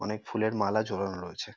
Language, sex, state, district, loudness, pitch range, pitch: Bengali, male, West Bengal, North 24 Parganas, -31 LUFS, 95-110 Hz, 105 Hz